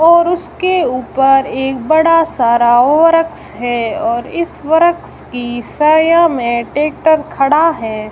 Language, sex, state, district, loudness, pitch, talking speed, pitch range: Hindi, female, Rajasthan, Jaisalmer, -13 LUFS, 300 Hz, 135 wpm, 245-330 Hz